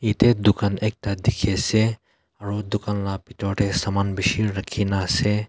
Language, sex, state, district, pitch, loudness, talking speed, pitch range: Nagamese, male, Nagaland, Kohima, 105 Hz, -22 LUFS, 175 wpm, 100-110 Hz